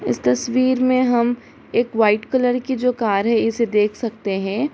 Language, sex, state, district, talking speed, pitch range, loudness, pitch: Hindi, female, Bihar, Gopalganj, 190 wpm, 210-250 Hz, -19 LUFS, 235 Hz